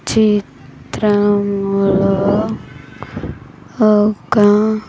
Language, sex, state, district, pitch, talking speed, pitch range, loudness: Telugu, female, Andhra Pradesh, Sri Satya Sai, 205 Hz, 35 wpm, 195-215 Hz, -14 LUFS